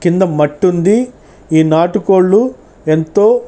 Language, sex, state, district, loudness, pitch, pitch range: Telugu, male, Andhra Pradesh, Chittoor, -12 LUFS, 185 Hz, 160-210 Hz